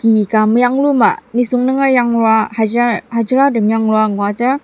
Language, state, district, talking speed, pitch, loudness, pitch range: Ao, Nagaland, Dimapur, 130 wpm, 235 Hz, -14 LUFS, 220-255 Hz